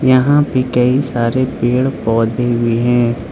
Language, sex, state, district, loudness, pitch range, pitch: Hindi, male, Arunachal Pradesh, Lower Dibang Valley, -14 LUFS, 120-130 Hz, 125 Hz